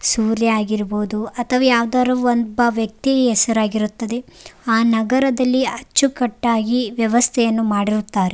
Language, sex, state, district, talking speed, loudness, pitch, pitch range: Kannada, female, Karnataka, Raichur, 85 wpm, -18 LUFS, 230 Hz, 220-250 Hz